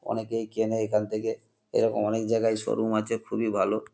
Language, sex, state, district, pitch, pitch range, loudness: Bengali, male, West Bengal, North 24 Parganas, 110 Hz, 110-115 Hz, -27 LUFS